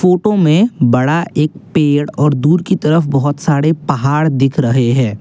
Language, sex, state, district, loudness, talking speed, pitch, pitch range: Hindi, male, Assam, Kamrup Metropolitan, -13 LUFS, 175 wpm, 150 Hz, 140-170 Hz